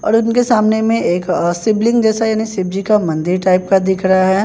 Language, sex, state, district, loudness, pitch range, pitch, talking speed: Hindi, male, Bihar, Katihar, -14 LUFS, 185-220 Hz, 195 Hz, 240 wpm